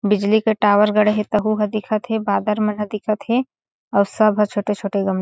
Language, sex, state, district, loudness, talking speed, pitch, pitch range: Chhattisgarhi, female, Chhattisgarh, Sarguja, -19 LUFS, 220 wpm, 210 Hz, 205-215 Hz